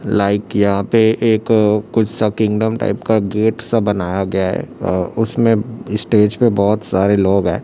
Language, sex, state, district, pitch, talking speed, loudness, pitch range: Hindi, male, Chhattisgarh, Raipur, 105 Hz, 165 wpm, -16 LUFS, 100-110 Hz